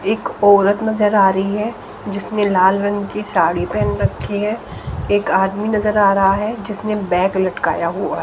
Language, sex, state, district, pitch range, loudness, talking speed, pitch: Hindi, female, Haryana, Jhajjar, 195-210 Hz, -17 LUFS, 175 wpm, 205 Hz